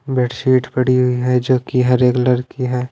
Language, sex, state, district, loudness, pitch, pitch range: Hindi, male, Punjab, Pathankot, -16 LUFS, 125 Hz, 125-130 Hz